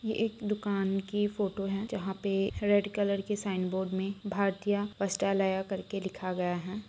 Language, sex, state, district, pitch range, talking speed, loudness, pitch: Hindi, female, Bihar, Saran, 195-205 Hz, 175 wpm, -32 LUFS, 200 Hz